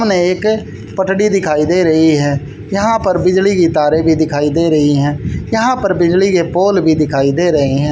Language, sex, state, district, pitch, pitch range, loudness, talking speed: Hindi, male, Haryana, Charkhi Dadri, 170 Hz, 150-195 Hz, -13 LUFS, 205 wpm